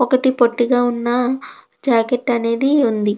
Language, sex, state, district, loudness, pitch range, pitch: Telugu, female, Andhra Pradesh, Krishna, -17 LUFS, 235-255 Hz, 245 Hz